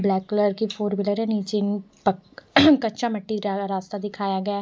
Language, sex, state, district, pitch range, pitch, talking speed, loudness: Hindi, female, Bihar, West Champaran, 200-215 Hz, 205 Hz, 180 wpm, -23 LUFS